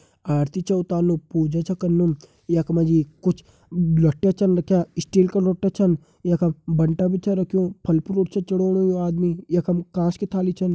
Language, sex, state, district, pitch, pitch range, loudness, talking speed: Hindi, male, Uttarakhand, Uttarkashi, 175 Hz, 170-185 Hz, -22 LUFS, 185 wpm